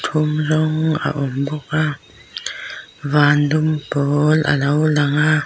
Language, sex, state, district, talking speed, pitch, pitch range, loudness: Mizo, female, Mizoram, Aizawl, 110 wpm, 150 Hz, 145-155 Hz, -18 LUFS